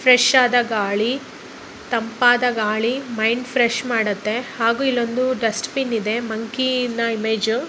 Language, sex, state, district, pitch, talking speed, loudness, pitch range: Kannada, female, Karnataka, Raichur, 235 Hz, 125 wpm, -20 LUFS, 220-250 Hz